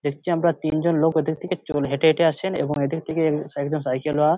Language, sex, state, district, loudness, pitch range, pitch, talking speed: Bengali, male, West Bengal, Purulia, -22 LUFS, 150-165 Hz, 155 Hz, 235 wpm